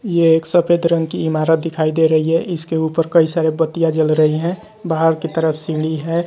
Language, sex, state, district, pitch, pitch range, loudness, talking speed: Hindi, male, Bihar, West Champaran, 160 Hz, 160-170 Hz, -17 LUFS, 220 wpm